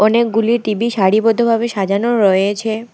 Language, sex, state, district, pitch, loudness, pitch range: Bengali, female, West Bengal, Alipurduar, 225 Hz, -15 LUFS, 205-235 Hz